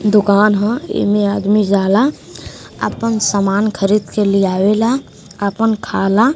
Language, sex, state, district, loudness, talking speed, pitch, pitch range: Bhojpuri, female, Uttar Pradesh, Gorakhpur, -15 LUFS, 130 wpm, 205 Hz, 200-220 Hz